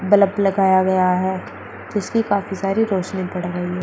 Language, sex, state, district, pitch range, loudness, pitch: Hindi, female, Uttar Pradesh, Shamli, 180-200 Hz, -19 LUFS, 190 Hz